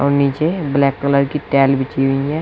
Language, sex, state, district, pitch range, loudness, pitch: Hindi, male, Uttar Pradesh, Shamli, 135-145 Hz, -16 LUFS, 140 Hz